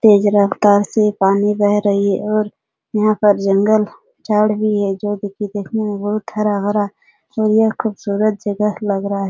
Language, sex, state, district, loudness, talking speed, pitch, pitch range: Hindi, female, Bihar, Supaul, -17 LUFS, 170 wpm, 205 Hz, 200-215 Hz